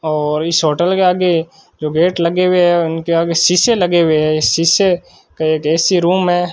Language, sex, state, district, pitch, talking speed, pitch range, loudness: Hindi, male, Rajasthan, Bikaner, 170 Hz, 200 wpm, 160-180 Hz, -14 LUFS